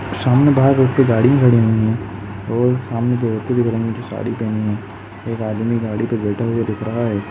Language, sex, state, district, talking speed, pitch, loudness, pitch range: Hindi, male, Uttar Pradesh, Jalaun, 230 wpm, 115 Hz, -17 LUFS, 105-120 Hz